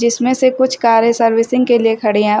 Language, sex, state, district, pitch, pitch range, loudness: Hindi, female, Uttar Pradesh, Shamli, 235 Hz, 225-255 Hz, -13 LUFS